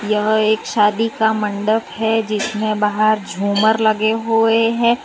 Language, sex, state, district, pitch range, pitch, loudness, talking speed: Hindi, female, Gujarat, Valsad, 210-225 Hz, 215 Hz, -17 LUFS, 145 wpm